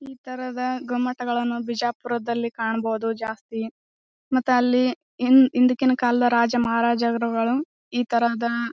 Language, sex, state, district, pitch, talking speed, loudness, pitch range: Kannada, female, Karnataka, Bijapur, 240 Hz, 95 wpm, -23 LUFS, 235-250 Hz